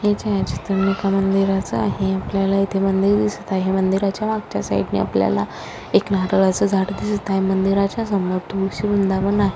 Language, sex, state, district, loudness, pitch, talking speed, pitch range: Marathi, female, Maharashtra, Sindhudurg, -20 LUFS, 195 Hz, 150 wpm, 190-200 Hz